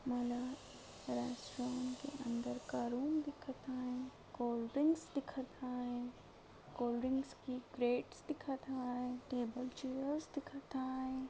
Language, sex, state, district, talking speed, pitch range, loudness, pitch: Marathi, female, Maharashtra, Sindhudurg, 105 wpm, 245-270 Hz, -42 LUFS, 255 Hz